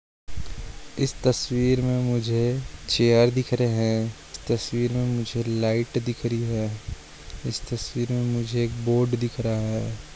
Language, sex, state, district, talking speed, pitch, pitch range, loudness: Hindi, male, Maharashtra, Sindhudurg, 140 wpm, 120 Hz, 110-125 Hz, -25 LUFS